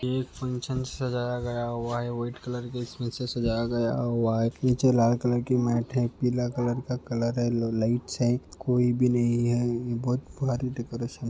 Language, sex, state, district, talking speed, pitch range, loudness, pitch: Hindi, male, Uttar Pradesh, Ghazipur, 185 wpm, 120-125 Hz, -27 LUFS, 120 Hz